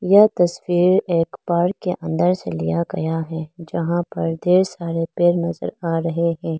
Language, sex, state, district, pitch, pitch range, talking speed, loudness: Hindi, female, Arunachal Pradesh, Lower Dibang Valley, 170 Hz, 165-180 Hz, 175 wpm, -20 LUFS